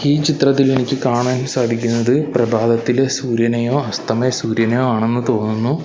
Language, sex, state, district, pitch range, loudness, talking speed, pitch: Malayalam, male, Kerala, Kollam, 115-135 Hz, -17 LUFS, 115 wpm, 125 Hz